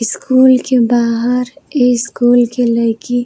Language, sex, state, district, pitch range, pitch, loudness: Bhojpuri, female, Uttar Pradesh, Varanasi, 235-255 Hz, 245 Hz, -13 LUFS